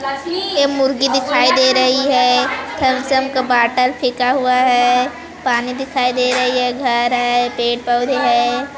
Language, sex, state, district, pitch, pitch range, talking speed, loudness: Hindi, female, Chhattisgarh, Kabirdham, 255 Hz, 245-270 Hz, 145 wpm, -15 LUFS